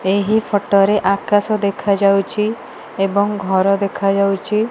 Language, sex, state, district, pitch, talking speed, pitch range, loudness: Odia, female, Odisha, Malkangiri, 200 Hz, 100 wpm, 195-210 Hz, -16 LUFS